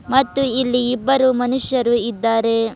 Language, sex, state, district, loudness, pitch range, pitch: Kannada, female, Karnataka, Bidar, -17 LUFS, 230-260 Hz, 250 Hz